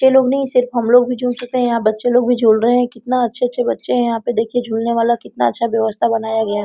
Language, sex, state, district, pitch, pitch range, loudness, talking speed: Hindi, female, Bihar, Araria, 240 Hz, 230-245 Hz, -16 LUFS, 305 wpm